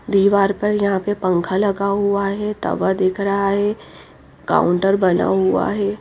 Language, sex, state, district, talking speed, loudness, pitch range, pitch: Hindi, female, Odisha, Nuapada, 160 wpm, -18 LUFS, 185-200 Hz, 200 Hz